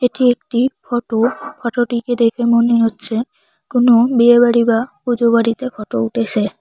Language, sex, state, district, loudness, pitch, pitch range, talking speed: Bengali, female, West Bengal, Cooch Behar, -15 LUFS, 235 Hz, 230-245 Hz, 135 wpm